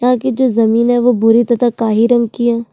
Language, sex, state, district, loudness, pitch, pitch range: Hindi, female, Chhattisgarh, Sukma, -13 LUFS, 240 Hz, 230-245 Hz